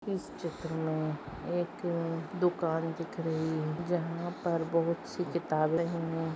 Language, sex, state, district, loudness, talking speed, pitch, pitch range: Hindi, female, Maharashtra, Aurangabad, -33 LUFS, 120 wpm, 165 Hz, 160-170 Hz